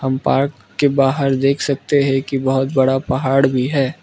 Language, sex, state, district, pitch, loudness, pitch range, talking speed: Hindi, male, Arunachal Pradesh, Lower Dibang Valley, 135 Hz, -17 LUFS, 130-140 Hz, 180 wpm